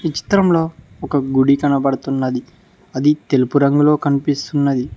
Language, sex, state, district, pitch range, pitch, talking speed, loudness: Telugu, male, Telangana, Mahabubabad, 135-150 Hz, 140 Hz, 110 wpm, -17 LUFS